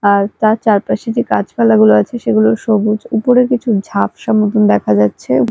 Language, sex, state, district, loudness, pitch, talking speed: Bengali, female, Odisha, Malkangiri, -13 LUFS, 200 Hz, 150 wpm